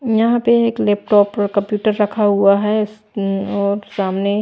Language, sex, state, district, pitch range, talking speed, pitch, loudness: Hindi, female, Chhattisgarh, Raipur, 200-215 Hz, 165 wpm, 205 Hz, -16 LUFS